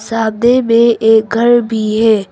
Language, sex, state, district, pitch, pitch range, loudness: Hindi, female, Arunachal Pradesh, Papum Pare, 225 Hz, 220-235 Hz, -11 LUFS